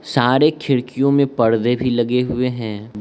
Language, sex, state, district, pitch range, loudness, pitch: Hindi, male, Arunachal Pradesh, Lower Dibang Valley, 120-135 Hz, -18 LUFS, 125 Hz